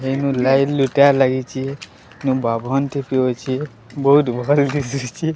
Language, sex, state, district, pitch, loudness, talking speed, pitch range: Odia, male, Odisha, Sambalpur, 135 Hz, -18 LUFS, 65 wpm, 130-140 Hz